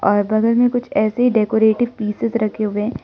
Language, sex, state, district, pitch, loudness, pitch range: Hindi, male, Arunachal Pradesh, Lower Dibang Valley, 220 Hz, -17 LUFS, 210-240 Hz